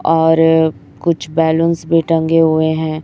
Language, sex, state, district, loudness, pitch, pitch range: Hindi, female, Chhattisgarh, Raipur, -14 LUFS, 160 Hz, 160-165 Hz